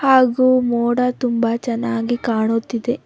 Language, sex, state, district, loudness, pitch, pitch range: Kannada, female, Karnataka, Bangalore, -18 LUFS, 240 Hz, 235-250 Hz